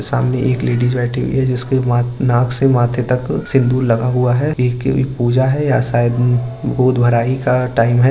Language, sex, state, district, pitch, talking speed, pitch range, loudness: Hindi, male, Uttar Pradesh, Budaun, 125 Hz, 200 wpm, 120-130 Hz, -15 LUFS